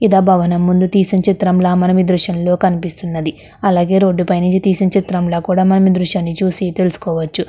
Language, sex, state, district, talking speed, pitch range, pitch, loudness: Telugu, female, Andhra Pradesh, Krishna, 190 wpm, 180-190 Hz, 185 Hz, -14 LUFS